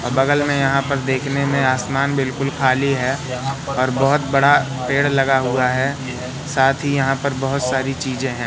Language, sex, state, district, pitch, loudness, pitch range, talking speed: Hindi, male, Madhya Pradesh, Katni, 135 Hz, -18 LUFS, 130-140 Hz, 185 wpm